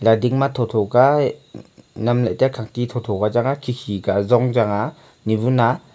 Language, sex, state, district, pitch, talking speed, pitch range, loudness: Wancho, male, Arunachal Pradesh, Longding, 120 Hz, 170 wpm, 110-125 Hz, -19 LUFS